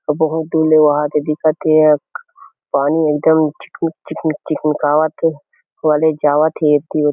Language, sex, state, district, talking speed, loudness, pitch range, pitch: Chhattisgarhi, male, Chhattisgarh, Kabirdham, 160 wpm, -15 LUFS, 150-160 Hz, 155 Hz